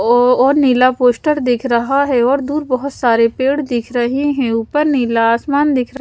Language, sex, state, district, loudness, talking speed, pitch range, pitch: Hindi, female, Punjab, Pathankot, -14 LUFS, 200 wpm, 240-280 Hz, 255 Hz